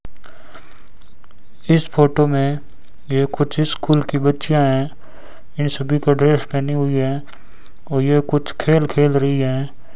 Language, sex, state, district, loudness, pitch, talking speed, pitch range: Hindi, male, Rajasthan, Bikaner, -18 LUFS, 145 Hz, 140 wpm, 140-150 Hz